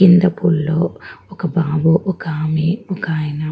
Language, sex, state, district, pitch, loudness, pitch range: Telugu, female, Andhra Pradesh, Guntur, 165 Hz, -17 LUFS, 155-180 Hz